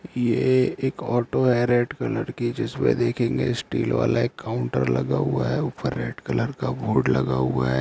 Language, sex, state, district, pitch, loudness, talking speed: Hindi, male, Jharkhand, Sahebganj, 120 Hz, -23 LUFS, 185 wpm